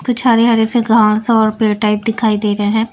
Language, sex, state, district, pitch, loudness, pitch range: Hindi, female, Bihar, Patna, 220 Hz, -13 LUFS, 215-230 Hz